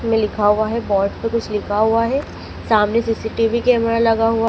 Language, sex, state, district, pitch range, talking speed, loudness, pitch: Hindi, female, Madhya Pradesh, Dhar, 215-230 Hz, 200 wpm, -18 LUFS, 225 Hz